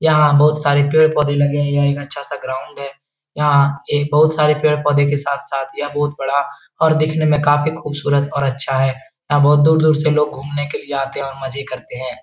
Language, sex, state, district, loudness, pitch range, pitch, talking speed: Hindi, male, Bihar, Jahanabad, -17 LUFS, 140-150 Hz, 145 Hz, 210 wpm